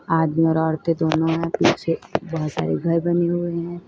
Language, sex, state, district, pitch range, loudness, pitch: Hindi, female, Uttar Pradesh, Lalitpur, 160-170 Hz, -21 LUFS, 165 Hz